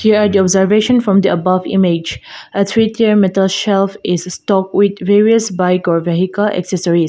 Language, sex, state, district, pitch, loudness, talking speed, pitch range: English, female, Mizoram, Aizawl, 195 Hz, -13 LUFS, 180 wpm, 180-205 Hz